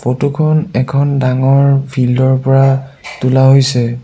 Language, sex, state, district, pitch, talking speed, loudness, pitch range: Assamese, male, Assam, Sonitpur, 135 Hz, 120 wpm, -12 LUFS, 130-140 Hz